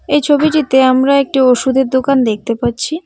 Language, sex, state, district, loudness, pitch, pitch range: Bengali, female, West Bengal, Cooch Behar, -12 LUFS, 265 Hz, 255-290 Hz